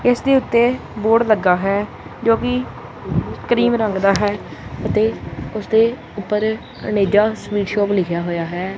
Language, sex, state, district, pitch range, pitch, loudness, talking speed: Punjabi, male, Punjab, Kapurthala, 200-230 Hz, 210 Hz, -18 LUFS, 145 wpm